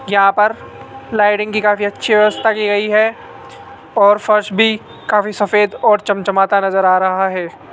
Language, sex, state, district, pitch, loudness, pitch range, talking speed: Hindi, male, Rajasthan, Jaipur, 210 Hz, -14 LUFS, 200-215 Hz, 170 wpm